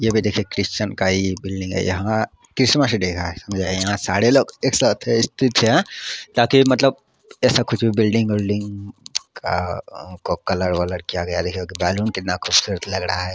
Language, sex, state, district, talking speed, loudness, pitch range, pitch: Hindi, male, Bihar, Araria, 155 wpm, -20 LUFS, 95-110 Hz, 100 Hz